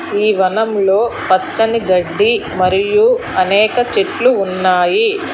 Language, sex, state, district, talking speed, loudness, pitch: Telugu, female, Telangana, Hyderabad, 90 wpm, -14 LUFS, 210 Hz